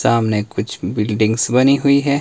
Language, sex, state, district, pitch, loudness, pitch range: Hindi, male, Himachal Pradesh, Shimla, 115 Hz, -16 LUFS, 105-140 Hz